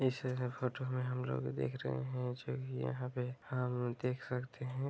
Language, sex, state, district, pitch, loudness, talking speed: Hindi, male, Chhattisgarh, Raigarh, 125 Hz, -39 LUFS, 210 wpm